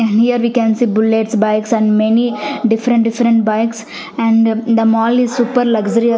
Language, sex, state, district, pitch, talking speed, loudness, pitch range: English, female, Punjab, Fazilka, 225 Hz, 175 wpm, -14 LUFS, 225-235 Hz